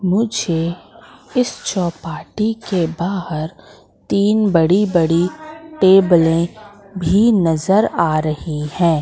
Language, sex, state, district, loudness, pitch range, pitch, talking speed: Hindi, female, Madhya Pradesh, Katni, -17 LUFS, 165-205 Hz, 180 Hz, 85 wpm